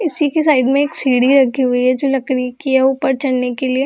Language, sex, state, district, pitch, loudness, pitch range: Hindi, female, Bihar, Gaya, 265 Hz, -15 LUFS, 255-275 Hz